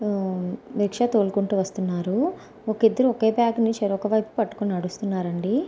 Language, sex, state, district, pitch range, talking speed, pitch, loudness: Telugu, female, Andhra Pradesh, Anantapur, 195-225 Hz, 125 wpm, 210 Hz, -24 LUFS